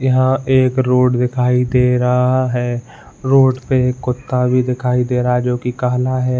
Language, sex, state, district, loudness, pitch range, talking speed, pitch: Hindi, male, Uttarakhand, Uttarkashi, -15 LUFS, 125-130 Hz, 180 wpm, 125 Hz